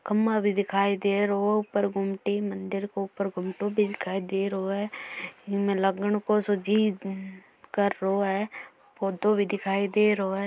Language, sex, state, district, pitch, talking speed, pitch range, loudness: Marwari, female, Rajasthan, Churu, 200 Hz, 170 wpm, 195-205 Hz, -27 LUFS